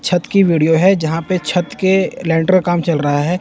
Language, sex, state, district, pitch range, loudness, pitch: Hindi, male, Chandigarh, Chandigarh, 165-185 Hz, -15 LUFS, 175 Hz